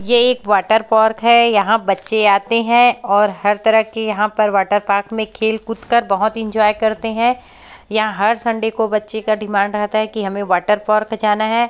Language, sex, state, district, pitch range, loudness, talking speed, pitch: Hindi, female, Chhattisgarh, Bastar, 210-225 Hz, -16 LUFS, 185 wpm, 220 Hz